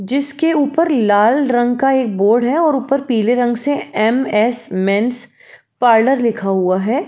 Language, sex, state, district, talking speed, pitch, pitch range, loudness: Hindi, female, Uttar Pradesh, Jalaun, 180 wpm, 245 Hz, 220-275 Hz, -15 LUFS